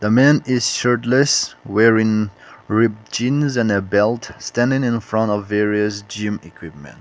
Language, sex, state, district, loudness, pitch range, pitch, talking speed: English, male, Nagaland, Kohima, -18 LUFS, 105-120 Hz, 110 Hz, 135 wpm